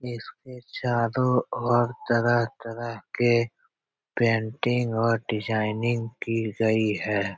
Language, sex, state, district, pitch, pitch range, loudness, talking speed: Hindi, male, Bihar, Jahanabad, 115 Hz, 110-120 Hz, -25 LUFS, 100 wpm